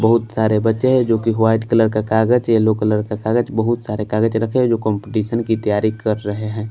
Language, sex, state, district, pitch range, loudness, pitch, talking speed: Hindi, male, Maharashtra, Washim, 110-115 Hz, -17 LUFS, 110 Hz, 230 wpm